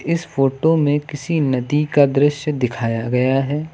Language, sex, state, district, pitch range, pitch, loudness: Hindi, female, Uttar Pradesh, Lucknow, 130-150 Hz, 145 Hz, -18 LUFS